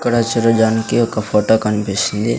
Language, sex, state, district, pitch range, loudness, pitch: Telugu, male, Andhra Pradesh, Sri Satya Sai, 105-115 Hz, -16 LUFS, 110 Hz